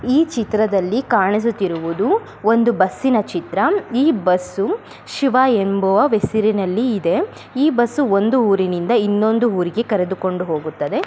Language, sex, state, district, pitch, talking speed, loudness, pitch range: Kannada, female, Karnataka, Bellary, 215 Hz, 110 wpm, -18 LUFS, 190-245 Hz